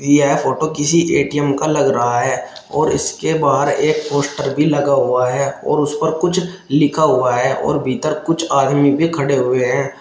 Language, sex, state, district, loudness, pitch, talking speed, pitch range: Hindi, male, Uttar Pradesh, Shamli, -16 LUFS, 145 Hz, 205 wpm, 140-155 Hz